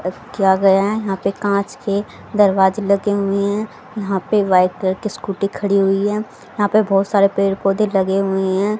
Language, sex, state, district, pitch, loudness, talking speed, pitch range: Hindi, female, Haryana, Rohtak, 200 Hz, -17 LUFS, 200 wpm, 195-205 Hz